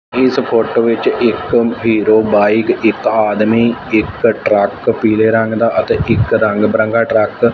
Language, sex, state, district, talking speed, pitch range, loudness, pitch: Punjabi, male, Punjab, Fazilka, 150 wpm, 110-115 Hz, -13 LUFS, 110 Hz